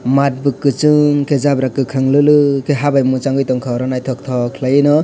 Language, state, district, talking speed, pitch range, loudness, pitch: Kokborok, Tripura, West Tripura, 190 wpm, 130-145 Hz, -14 LUFS, 135 Hz